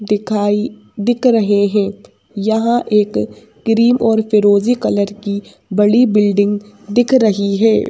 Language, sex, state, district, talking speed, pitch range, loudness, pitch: Hindi, female, Madhya Pradesh, Bhopal, 120 wpm, 205-225 Hz, -15 LUFS, 210 Hz